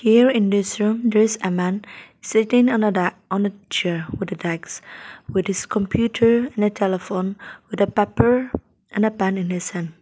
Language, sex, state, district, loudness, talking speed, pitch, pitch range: English, female, Nagaland, Dimapur, -21 LUFS, 195 wpm, 200 Hz, 185-220 Hz